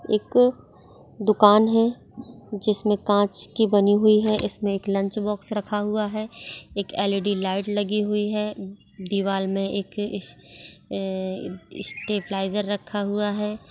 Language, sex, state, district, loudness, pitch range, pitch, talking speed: Hindi, female, Maharashtra, Chandrapur, -23 LUFS, 195-210 Hz, 205 Hz, 140 wpm